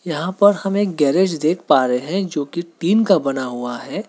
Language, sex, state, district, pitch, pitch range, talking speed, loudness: Hindi, male, Meghalaya, West Garo Hills, 170 Hz, 145-195 Hz, 220 wpm, -18 LUFS